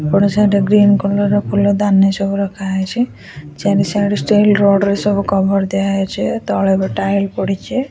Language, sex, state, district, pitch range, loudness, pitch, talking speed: Odia, female, Odisha, Khordha, 195-205 Hz, -15 LUFS, 200 Hz, 180 wpm